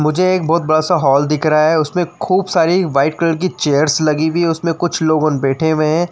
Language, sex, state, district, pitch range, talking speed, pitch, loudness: Hindi, male, Uttar Pradesh, Jyotiba Phule Nagar, 155-175 Hz, 245 wpm, 160 Hz, -15 LUFS